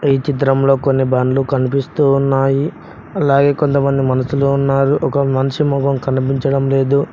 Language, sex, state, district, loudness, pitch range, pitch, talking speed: Telugu, male, Telangana, Mahabubabad, -15 LUFS, 135-140 Hz, 135 Hz, 120 wpm